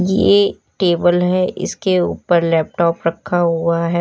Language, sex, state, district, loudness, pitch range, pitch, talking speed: Hindi, female, Uttar Pradesh, Lalitpur, -16 LUFS, 170-185 Hz, 175 Hz, 135 wpm